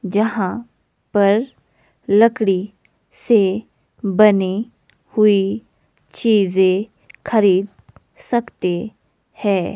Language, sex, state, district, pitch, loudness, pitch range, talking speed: Hindi, female, Himachal Pradesh, Shimla, 205 Hz, -18 LUFS, 190-220 Hz, 60 wpm